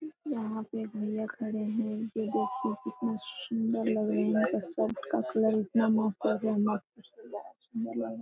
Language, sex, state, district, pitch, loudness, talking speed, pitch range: Hindi, female, Jharkhand, Sahebganj, 220 Hz, -31 LUFS, 170 wpm, 200-225 Hz